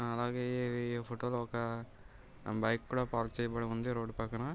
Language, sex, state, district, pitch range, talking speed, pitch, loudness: Telugu, male, Andhra Pradesh, Visakhapatnam, 115-120 Hz, 160 wpm, 120 Hz, -37 LUFS